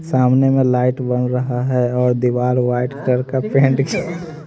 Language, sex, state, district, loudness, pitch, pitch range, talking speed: Hindi, male, Haryana, Rohtak, -17 LUFS, 125 Hz, 125-135 Hz, 175 wpm